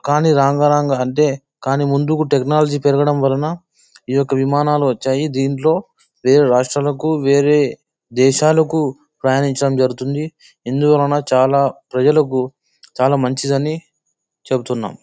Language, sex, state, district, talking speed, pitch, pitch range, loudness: Telugu, male, Andhra Pradesh, Anantapur, 110 wpm, 140 Hz, 135-150 Hz, -16 LUFS